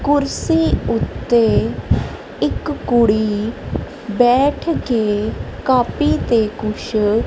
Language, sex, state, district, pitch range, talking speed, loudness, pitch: Punjabi, female, Punjab, Kapurthala, 215-270 Hz, 85 wpm, -18 LUFS, 235 Hz